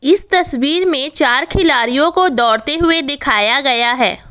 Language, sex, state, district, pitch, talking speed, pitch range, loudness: Hindi, female, Assam, Kamrup Metropolitan, 295 Hz, 155 wpm, 255-340 Hz, -13 LUFS